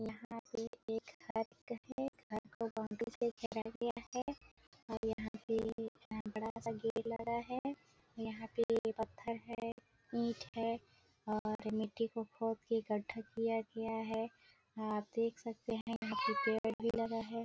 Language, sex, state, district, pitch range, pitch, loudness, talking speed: Hindi, female, Chhattisgarh, Bilaspur, 220-230 Hz, 225 Hz, -41 LUFS, 160 wpm